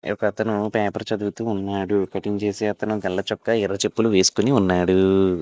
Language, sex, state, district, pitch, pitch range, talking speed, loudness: Telugu, male, Andhra Pradesh, Visakhapatnam, 105 Hz, 95-110 Hz, 100 wpm, -22 LUFS